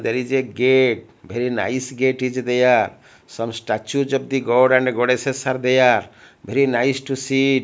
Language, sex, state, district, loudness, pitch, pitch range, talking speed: English, male, Odisha, Malkangiri, -19 LUFS, 130 Hz, 125-135 Hz, 180 wpm